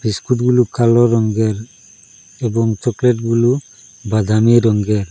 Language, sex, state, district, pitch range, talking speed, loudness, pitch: Bengali, male, Assam, Hailakandi, 110-120 Hz, 95 wpm, -15 LUFS, 115 Hz